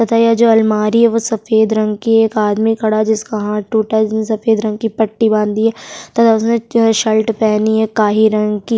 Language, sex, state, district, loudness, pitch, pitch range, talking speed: Hindi, female, Bihar, Kishanganj, -14 LUFS, 220 Hz, 215-225 Hz, 200 wpm